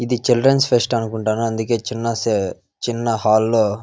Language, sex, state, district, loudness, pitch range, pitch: Telugu, male, Andhra Pradesh, Visakhapatnam, -19 LUFS, 110-120 Hz, 115 Hz